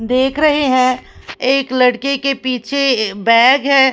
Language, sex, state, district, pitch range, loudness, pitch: Hindi, female, Punjab, Pathankot, 250-275 Hz, -14 LUFS, 260 Hz